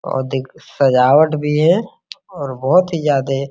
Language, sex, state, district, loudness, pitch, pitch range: Hindi, male, Bihar, Araria, -16 LUFS, 145 Hz, 135-165 Hz